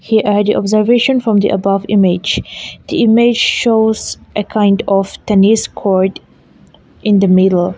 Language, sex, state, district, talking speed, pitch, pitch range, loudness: English, female, Mizoram, Aizawl, 145 wpm, 205 Hz, 195-220 Hz, -13 LUFS